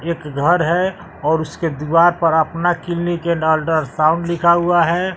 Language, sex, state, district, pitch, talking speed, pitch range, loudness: Hindi, male, Bihar, West Champaran, 170 Hz, 150 wpm, 160-175 Hz, -17 LUFS